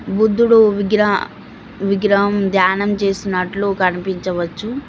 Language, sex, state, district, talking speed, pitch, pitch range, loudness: Telugu, female, Telangana, Mahabubabad, 75 wpm, 200 Hz, 190-210 Hz, -16 LUFS